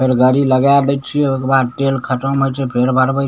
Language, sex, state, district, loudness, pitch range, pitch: Maithili, male, Bihar, Samastipur, -15 LUFS, 130-140 Hz, 135 Hz